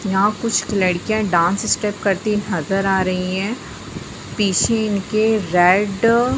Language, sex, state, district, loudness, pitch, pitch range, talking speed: Hindi, female, Jharkhand, Sahebganj, -18 LUFS, 200 Hz, 190-215 Hz, 140 wpm